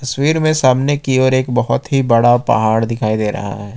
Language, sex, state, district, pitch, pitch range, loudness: Hindi, male, Jharkhand, Ranchi, 125 Hz, 110-135 Hz, -14 LUFS